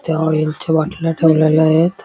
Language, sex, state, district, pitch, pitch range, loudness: Marathi, male, Maharashtra, Dhule, 160 Hz, 155-165 Hz, -15 LUFS